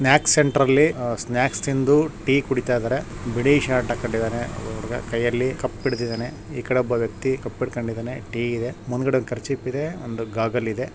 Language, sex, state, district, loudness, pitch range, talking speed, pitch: Kannada, male, Karnataka, Shimoga, -23 LUFS, 115-135 Hz, 160 wpm, 125 Hz